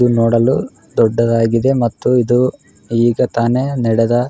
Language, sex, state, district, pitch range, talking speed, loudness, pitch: Kannada, male, Karnataka, Raichur, 115-125 Hz, 125 wpm, -15 LUFS, 120 Hz